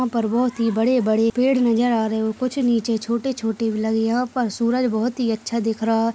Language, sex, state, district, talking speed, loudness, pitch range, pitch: Hindi, female, Goa, North and South Goa, 255 wpm, -21 LUFS, 225-245 Hz, 230 Hz